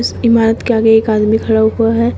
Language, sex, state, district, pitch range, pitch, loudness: Hindi, female, Uttar Pradesh, Shamli, 220-230 Hz, 225 Hz, -12 LUFS